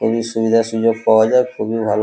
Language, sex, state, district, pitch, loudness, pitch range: Bengali, male, West Bengal, Kolkata, 115 Hz, -16 LUFS, 110-115 Hz